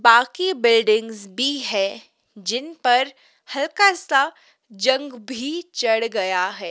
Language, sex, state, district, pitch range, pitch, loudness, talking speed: Hindi, female, Himachal Pradesh, Shimla, 225-315 Hz, 255 Hz, -20 LUFS, 115 wpm